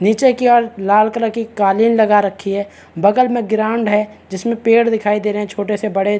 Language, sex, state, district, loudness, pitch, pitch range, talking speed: Hindi, male, Chhattisgarh, Bastar, -15 LUFS, 210 Hz, 205-230 Hz, 230 wpm